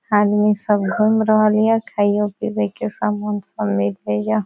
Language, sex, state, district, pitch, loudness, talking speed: Maithili, female, Bihar, Saharsa, 210 Hz, -18 LUFS, 160 wpm